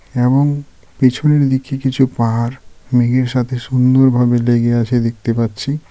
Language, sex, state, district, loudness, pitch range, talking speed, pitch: Bengali, male, West Bengal, Darjeeling, -15 LUFS, 120-130 Hz, 130 wpm, 125 Hz